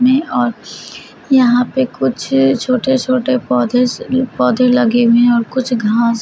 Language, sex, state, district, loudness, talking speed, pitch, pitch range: Hindi, female, Uttar Pradesh, Shamli, -14 LUFS, 155 wpm, 245 Hz, 230-255 Hz